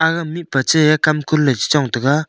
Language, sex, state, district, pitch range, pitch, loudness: Wancho, male, Arunachal Pradesh, Longding, 140-160 Hz, 155 Hz, -16 LUFS